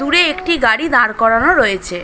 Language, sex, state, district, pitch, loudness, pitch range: Bengali, female, West Bengal, Dakshin Dinajpur, 245 Hz, -13 LUFS, 215-325 Hz